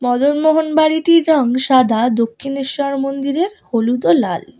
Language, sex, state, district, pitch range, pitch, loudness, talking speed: Bengali, female, West Bengal, Cooch Behar, 245-310 Hz, 275 Hz, -15 LUFS, 115 wpm